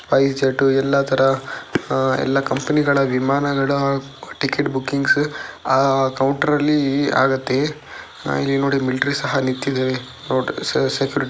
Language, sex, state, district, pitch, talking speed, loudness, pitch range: Kannada, male, Karnataka, Dakshina Kannada, 135 Hz, 85 wpm, -19 LUFS, 130-140 Hz